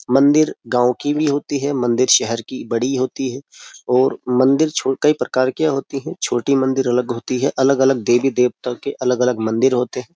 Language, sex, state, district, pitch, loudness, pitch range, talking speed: Hindi, male, Uttar Pradesh, Jyotiba Phule Nagar, 130 Hz, -18 LUFS, 125-140 Hz, 190 wpm